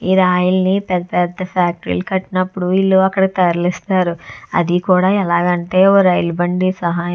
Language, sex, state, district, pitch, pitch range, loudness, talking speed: Telugu, female, Andhra Pradesh, Visakhapatnam, 185 Hz, 175-190 Hz, -15 LUFS, 150 wpm